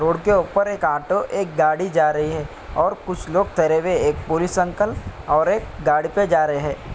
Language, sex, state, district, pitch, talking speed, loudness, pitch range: Hindi, male, Bihar, Samastipur, 160 Hz, 215 wpm, -20 LUFS, 150-195 Hz